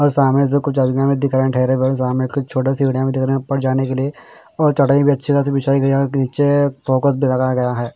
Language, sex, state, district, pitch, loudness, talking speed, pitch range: Hindi, male, Bihar, Katihar, 135 Hz, -16 LUFS, 265 wpm, 130-140 Hz